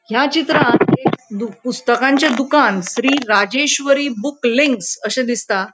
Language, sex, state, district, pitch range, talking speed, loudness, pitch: Konkani, female, Goa, North and South Goa, 225-280 Hz, 115 wpm, -16 LUFS, 255 Hz